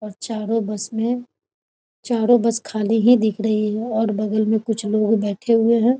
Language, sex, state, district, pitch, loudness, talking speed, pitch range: Maithili, female, Bihar, Muzaffarpur, 220 Hz, -20 LUFS, 190 wpm, 215-230 Hz